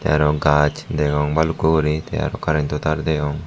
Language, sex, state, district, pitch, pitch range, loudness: Chakma, male, Tripura, Dhalai, 75 Hz, 75-80 Hz, -19 LUFS